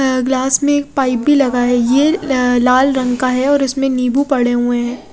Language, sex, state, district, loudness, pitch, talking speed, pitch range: Hindi, female, Odisha, Khordha, -14 LUFS, 260 Hz, 220 wpm, 250-275 Hz